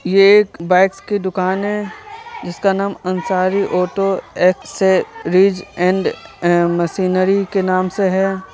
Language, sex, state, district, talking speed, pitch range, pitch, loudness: Hindi, male, Bihar, Vaishali, 125 wpm, 185-195 Hz, 190 Hz, -16 LUFS